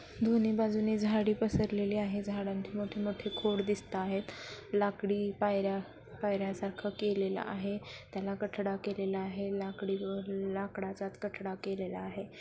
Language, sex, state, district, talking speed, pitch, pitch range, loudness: Marathi, female, Maharashtra, Solapur, 115 wpm, 200 Hz, 195-210 Hz, -35 LUFS